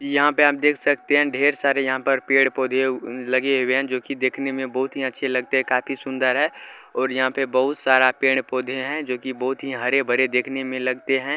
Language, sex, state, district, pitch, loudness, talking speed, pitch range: Maithili, male, Bihar, Vaishali, 130 Hz, -21 LUFS, 225 wpm, 130-140 Hz